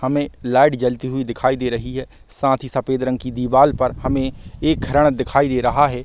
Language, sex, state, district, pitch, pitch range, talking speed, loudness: Hindi, male, Chhattisgarh, Bastar, 130 Hz, 125-135 Hz, 210 wpm, -19 LUFS